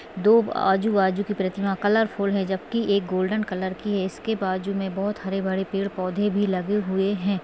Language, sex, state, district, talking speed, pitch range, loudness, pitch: Hindi, female, Maharashtra, Chandrapur, 200 wpm, 190-205 Hz, -24 LUFS, 195 Hz